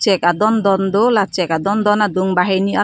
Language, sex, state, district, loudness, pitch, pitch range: Karbi, female, Assam, Karbi Anglong, -15 LUFS, 195 Hz, 185-210 Hz